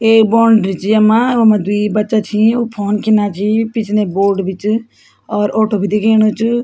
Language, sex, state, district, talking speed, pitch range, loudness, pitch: Garhwali, female, Uttarakhand, Tehri Garhwal, 190 wpm, 205-225 Hz, -13 LUFS, 215 Hz